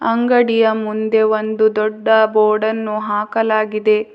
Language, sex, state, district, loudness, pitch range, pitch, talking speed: Kannada, female, Karnataka, Bidar, -16 LUFS, 215-220 Hz, 220 Hz, 85 wpm